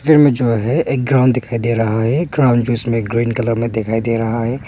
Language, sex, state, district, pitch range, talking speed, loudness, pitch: Hindi, male, Arunachal Pradesh, Longding, 115-130 Hz, 220 wpm, -16 LUFS, 115 Hz